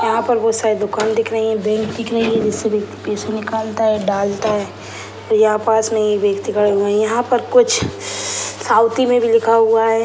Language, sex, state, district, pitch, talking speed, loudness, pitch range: Hindi, male, Bihar, Purnia, 220 Hz, 205 wpm, -17 LUFS, 210-225 Hz